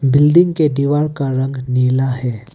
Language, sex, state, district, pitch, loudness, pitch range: Hindi, male, Arunachal Pradesh, Papum Pare, 135 Hz, -15 LUFS, 130-150 Hz